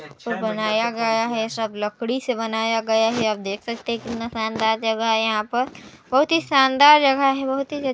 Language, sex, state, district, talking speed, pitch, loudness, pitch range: Hindi, female, Chhattisgarh, Balrampur, 190 wpm, 230 Hz, -21 LUFS, 220-260 Hz